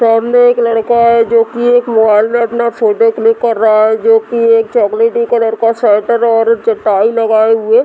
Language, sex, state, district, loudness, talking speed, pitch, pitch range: Hindi, female, Bihar, Muzaffarpur, -10 LUFS, 205 wpm, 230 Hz, 220-235 Hz